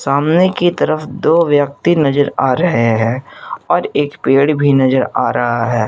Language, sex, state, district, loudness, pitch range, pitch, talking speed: Hindi, male, Jharkhand, Garhwa, -14 LUFS, 125-155 Hz, 140 Hz, 175 wpm